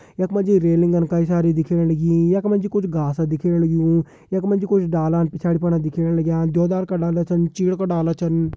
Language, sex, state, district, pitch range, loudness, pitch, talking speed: Hindi, male, Uttarakhand, Uttarkashi, 165-185 Hz, -19 LUFS, 170 Hz, 225 wpm